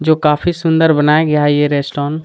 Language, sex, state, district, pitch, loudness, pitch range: Hindi, male, Chhattisgarh, Kabirdham, 150 Hz, -13 LUFS, 145-160 Hz